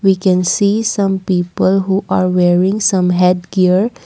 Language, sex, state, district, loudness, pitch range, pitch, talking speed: English, female, Assam, Kamrup Metropolitan, -14 LUFS, 180-195 Hz, 185 Hz, 145 wpm